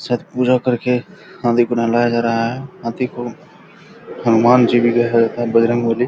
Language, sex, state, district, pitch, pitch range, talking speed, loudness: Hindi, male, Bihar, Purnia, 120 Hz, 115-125 Hz, 160 wpm, -16 LUFS